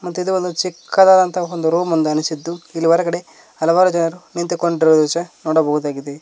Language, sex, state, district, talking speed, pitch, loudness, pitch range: Kannada, male, Karnataka, Koppal, 135 wpm, 170 Hz, -17 LUFS, 160-180 Hz